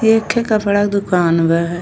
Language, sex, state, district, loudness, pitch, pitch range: Bhojpuri, female, Uttar Pradesh, Deoria, -15 LUFS, 200 Hz, 170-215 Hz